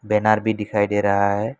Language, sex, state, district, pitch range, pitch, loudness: Hindi, male, Assam, Kamrup Metropolitan, 100-110 Hz, 105 Hz, -20 LUFS